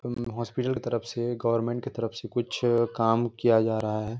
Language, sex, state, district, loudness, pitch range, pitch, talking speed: Hindi, male, Jharkhand, Jamtara, -27 LUFS, 115-120 Hz, 120 Hz, 215 wpm